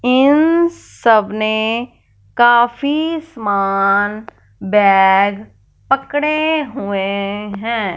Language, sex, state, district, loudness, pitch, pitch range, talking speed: Hindi, female, Punjab, Fazilka, -15 LUFS, 220 Hz, 200-275 Hz, 70 wpm